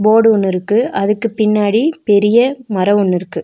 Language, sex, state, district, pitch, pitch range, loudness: Tamil, female, Tamil Nadu, Nilgiris, 210 Hz, 200-225 Hz, -14 LUFS